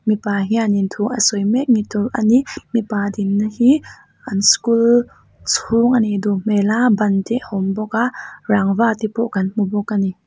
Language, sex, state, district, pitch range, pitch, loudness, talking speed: Mizo, female, Mizoram, Aizawl, 200-230 Hz, 215 Hz, -17 LUFS, 185 wpm